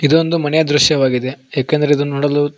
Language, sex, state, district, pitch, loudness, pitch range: Kannada, male, Karnataka, Koppal, 145 Hz, -15 LUFS, 140-150 Hz